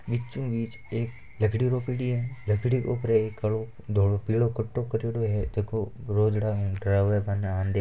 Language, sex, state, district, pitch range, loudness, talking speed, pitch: Marwari, male, Rajasthan, Nagaur, 105-120 Hz, -28 LUFS, 170 wpm, 110 Hz